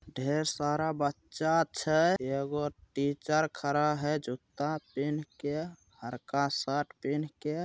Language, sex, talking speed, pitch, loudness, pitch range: Bhojpuri, male, 115 wpm, 150 Hz, -32 LUFS, 140-155 Hz